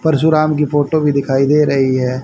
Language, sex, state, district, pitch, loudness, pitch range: Hindi, male, Haryana, Rohtak, 145 Hz, -14 LUFS, 135-155 Hz